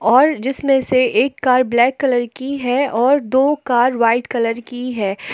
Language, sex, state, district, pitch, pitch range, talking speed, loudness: Hindi, female, Jharkhand, Palamu, 255 Hz, 240-270 Hz, 180 wpm, -16 LUFS